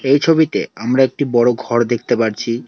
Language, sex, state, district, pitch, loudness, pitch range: Bengali, male, West Bengal, Alipurduar, 120 Hz, -16 LUFS, 120-135 Hz